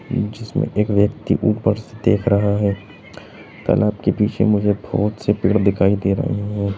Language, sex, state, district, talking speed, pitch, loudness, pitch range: Hindi, male, Chhattisgarh, Bilaspur, 175 wpm, 105 Hz, -19 LUFS, 100-105 Hz